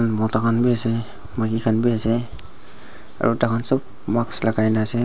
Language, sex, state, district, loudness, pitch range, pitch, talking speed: Nagamese, male, Nagaland, Dimapur, -20 LUFS, 110-120 Hz, 115 Hz, 190 wpm